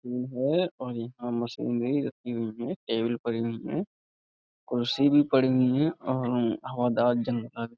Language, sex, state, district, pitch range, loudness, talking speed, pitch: Hindi, male, Uttar Pradesh, Budaun, 120-130 Hz, -28 LUFS, 145 wpm, 120 Hz